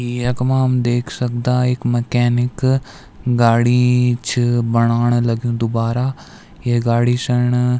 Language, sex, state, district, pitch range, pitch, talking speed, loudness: Garhwali, male, Uttarakhand, Tehri Garhwal, 120-125 Hz, 120 Hz, 115 wpm, -17 LUFS